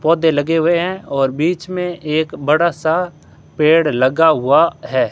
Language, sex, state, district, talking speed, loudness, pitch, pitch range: Hindi, male, Rajasthan, Bikaner, 165 wpm, -16 LUFS, 160 Hz, 150-170 Hz